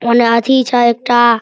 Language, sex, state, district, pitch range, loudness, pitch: Maithili, male, Bihar, Araria, 235-245 Hz, -12 LUFS, 240 Hz